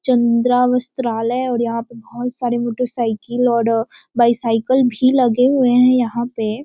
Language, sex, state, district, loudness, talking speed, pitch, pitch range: Hindi, female, Bihar, Sitamarhi, -17 LUFS, 155 wpm, 240 Hz, 235-250 Hz